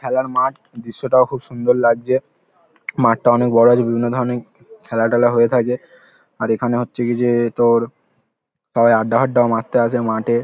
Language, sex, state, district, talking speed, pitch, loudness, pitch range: Bengali, male, West Bengal, Paschim Medinipur, 165 wpm, 120 Hz, -17 LUFS, 115-125 Hz